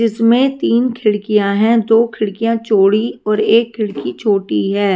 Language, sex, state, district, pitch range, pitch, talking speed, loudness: Hindi, female, Haryana, Rohtak, 205-230 Hz, 220 Hz, 145 wpm, -15 LUFS